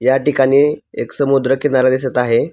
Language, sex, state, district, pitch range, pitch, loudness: Marathi, male, Maharashtra, Pune, 130-140 Hz, 135 Hz, -15 LUFS